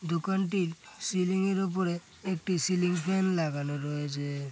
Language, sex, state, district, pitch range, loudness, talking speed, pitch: Bengali, male, West Bengal, Paschim Medinipur, 160-190 Hz, -30 LUFS, 120 wpm, 180 Hz